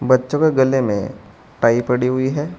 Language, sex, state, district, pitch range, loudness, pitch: Hindi, male, Uttar Pradesh, Saharanpur, 125-140 Hz, -17 LUFS, 130 Hz